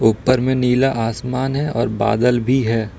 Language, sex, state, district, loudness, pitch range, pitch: Hindi, male, Jharkhand, Ranchi, -18 LUFS, 115-130 Hz, 125 Hz